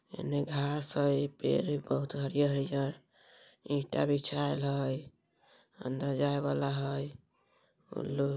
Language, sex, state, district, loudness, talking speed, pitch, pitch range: Bajjika, female, Bihar, Vaishali, -33 LUFS, 105 wpm, 140 Hz, 140-145 Hz